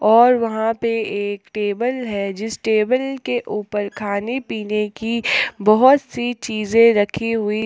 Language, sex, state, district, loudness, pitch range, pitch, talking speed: Hindi, female, Jharkhand, Palamu, -19 LUFS, 210-240 Hz, 220 Hz, 140 wpm